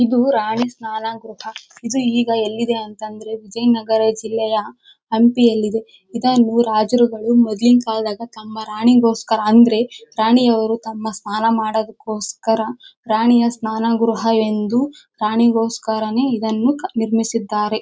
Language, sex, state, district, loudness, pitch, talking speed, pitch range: Kannada, female, Karnataka, Bellary, -17 LUFS, 225 Hz, 105 wpm, 220-235 Hz